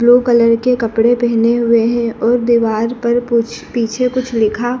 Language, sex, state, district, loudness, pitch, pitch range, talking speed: Hindi, female, Madhya Pradesh, Dhar, -14 LUFS, 235 Hz, 230-245 Hz, 175 wpm